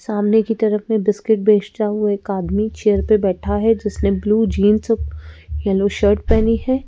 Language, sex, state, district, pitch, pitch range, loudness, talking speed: Hindi, female, Madhya Pradesh, Bhopal, 210 Hz, 200-220 Hz, -17 LUFS, 175 wpm